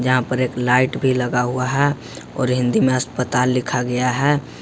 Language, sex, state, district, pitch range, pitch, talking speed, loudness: Hindi, male, Jharkhand, Ranchi, 125-130 Hz, 125 Hz, 195 wpm, -19 LUFS